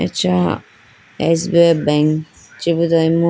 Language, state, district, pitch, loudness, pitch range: Idu Mishmi, Arunachal Pradesh, Lower Dibang Valley, 160 Hz, -16 LUFS, 145-170 Hz